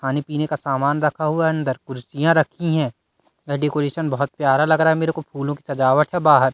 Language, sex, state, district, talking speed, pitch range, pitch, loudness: Hindi, male, Madhya Pradesh, Katni, 220 wpm, 140-160 Hz, 150 Hz, -20 LUFS